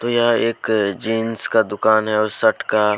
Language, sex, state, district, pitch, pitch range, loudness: Hindi, male, Jharkhand, Deoghar, 110 Hz, 105-115 Hz, -18 LUFS